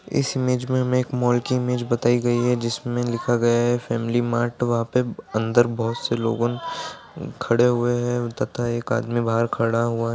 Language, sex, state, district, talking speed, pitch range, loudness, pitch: Hindi, male, Bihar, Purnia, 195 wpm, 115-125 Hz, -22 LUFS, 120 Hz